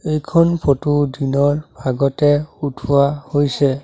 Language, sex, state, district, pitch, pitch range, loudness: Assamese, male, Assam, Sonitpur, 145 Hz, 140-150 Hz, -17 LUFS